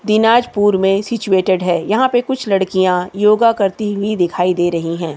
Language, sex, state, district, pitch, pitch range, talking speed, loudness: Hindi, female, Chhattisgarh, Kabirdham, 195 Hz, 180-215 Hz, 160 wpm, -15 LUFS